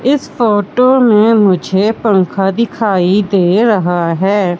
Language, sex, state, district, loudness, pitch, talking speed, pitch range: Hindi, female, Madhya Pradesh, Katni, -12 LUFS, 205 Hz, 115 wpm, 190-230 Hz